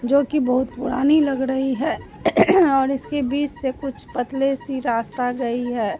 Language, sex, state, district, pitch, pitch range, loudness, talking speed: Hindi, female, Bihar, Katihar, 265 Hz, 250-280 Hz, -21 LUFS, 160 wpm